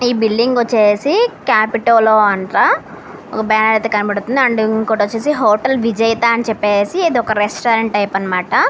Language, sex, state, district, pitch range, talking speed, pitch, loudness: Telugu, female, Andhra Pradesh, Srikakulam, 210-235 Hz, 125 wpm, 220 Hz, -14 LUFS